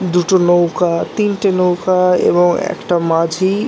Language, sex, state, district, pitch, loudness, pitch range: Bengali, male, West Bengal, North 24 Parganas, 180 Hz, -14 LUFS, 175-190 Hz